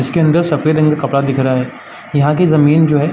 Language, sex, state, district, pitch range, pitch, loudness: Hindi, male, Uttar Pradesh, Varanasi, 140-155 Hz, 150 Hz, -13 LUFS